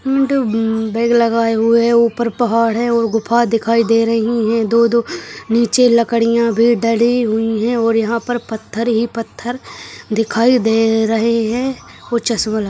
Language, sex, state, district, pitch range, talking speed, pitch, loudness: Hindi, male, Uttarakhand, Tehri Garhwal, 225-235 Hz, 160 wpm, 230 Hz, -15 LUFS